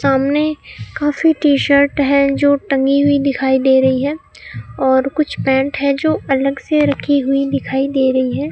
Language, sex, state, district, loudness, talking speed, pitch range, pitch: Hindi, female, Rajasthan, Bikaner, -15 LUFS, 175 wpm, 265-285 Hz, 275 Hz